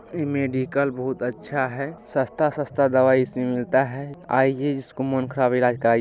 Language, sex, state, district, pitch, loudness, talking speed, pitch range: Maithili, male, Bihar, Supaul, 130 Hz, -23 LUFS, 180 wpm, 125-140 Hz